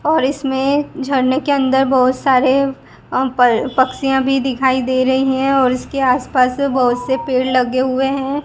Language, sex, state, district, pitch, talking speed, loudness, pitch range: Hindi, female, Gujarat, Gandhinagar, 265 Hz, 185 wpm, -16 LUFS, 255-270 Hz